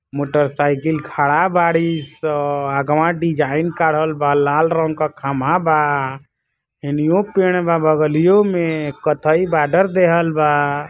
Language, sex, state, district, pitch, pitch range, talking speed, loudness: Bhojpuri, male, Uttar Pradesh, Ghazipur, 155 Hz, 145-165 Hz, 130 wpm, -17 LUFS